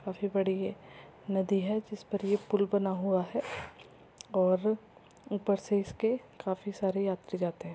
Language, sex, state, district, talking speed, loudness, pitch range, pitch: Hindi, female, Uttar Pradesh, Muzaffarnagar, 160 wpm, -32 LUFS, 190-205 Hz, 195 Hz